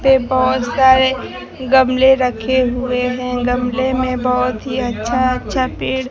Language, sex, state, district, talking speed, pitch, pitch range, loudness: Hindi, female, Bihar, Kaimur, 135 wpm, 255 Hz, 250-260 Hz, -16 LUFS